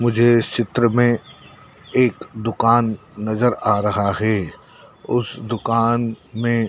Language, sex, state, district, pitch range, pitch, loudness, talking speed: Hindi, male, Madhya Pradesh, Dhar, 110-120 Hz, 115 Hz, -19 LUFS, 115 wpm